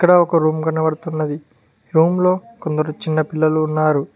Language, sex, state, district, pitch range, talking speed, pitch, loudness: Telugu, male, Telangana, Mahabubabad, 155-165 Hz, 145 wpm, 155 Hz, -18 LUFS